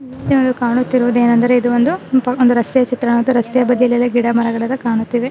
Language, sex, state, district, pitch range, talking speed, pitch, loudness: Kannada, female, Karnataka, Raichur, 240-255 Hz, 180 wpm, 245 Hz, -15 LUFS